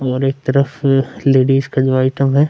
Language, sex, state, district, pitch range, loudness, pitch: Hindi, male, Bihar, Vaishali, 130-140 Hz, -15 LUFS, 135 Hz